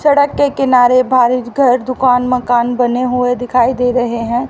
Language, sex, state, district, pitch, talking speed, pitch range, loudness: Hindi, female, Haryana, Rohtak, 250 Hz, 175 wpm, 245-255 Hz, -13 LUFS